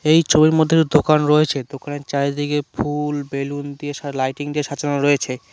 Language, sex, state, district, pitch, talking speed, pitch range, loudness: Bengali, male, West Bengal, Cooch Behar, 145 Hz, 175 wpm, 140-150 Hz, -19 LUFS